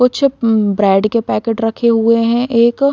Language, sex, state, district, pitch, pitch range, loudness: Hindi, female, Bihar, East Champaran, 230 Hz, 225-240 Hz, -14 LUFS